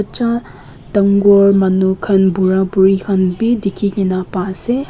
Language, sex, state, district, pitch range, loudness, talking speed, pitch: Nagamese, female, Nagaland, Kohima, 190-200 Hz, -14 LUFS, 145 wpm, 195 Hz